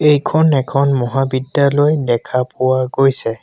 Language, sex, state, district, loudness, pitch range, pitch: Assamese, male, Assam, Sonitpur, -15 LUFS, 130-145 Hz, 135 Hz